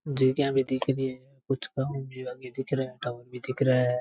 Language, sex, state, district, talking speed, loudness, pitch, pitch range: Rajasthani, male, Rajasthan, Churu, 240 wpm, -29 LUFS, 130 Hz, 130-135 Hz